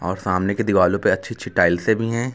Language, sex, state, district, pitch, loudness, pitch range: Hindi, male, Uttar Pradesh, Lucknow, 100 Hz, -20 LUFS, 90-110 Hz